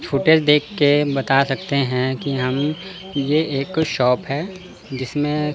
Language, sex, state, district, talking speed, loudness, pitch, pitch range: Hindi, male, Chandigarh, Chandigarh, 140 wpm, -19 LUFS, 145 Hz, 135-155 Hz